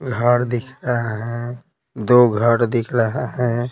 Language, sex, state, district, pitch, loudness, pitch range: Hindi, male, Bihar, Patna, 120 Hz, -19 LUFS, 115-125 Hz